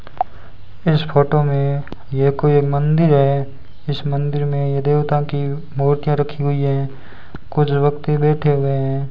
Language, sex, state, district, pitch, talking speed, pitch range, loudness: Hindi, male, Rajasthan, Bikaner, 145 Hz, 150 wpm, 140-145 Hz, -18 LUFS